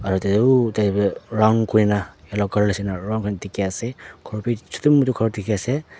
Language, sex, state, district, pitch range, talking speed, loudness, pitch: Nagamese, male, Nagaland, Dimapur, 100-115 Hz, 170 wpm, -21 LUFS, 105 Hz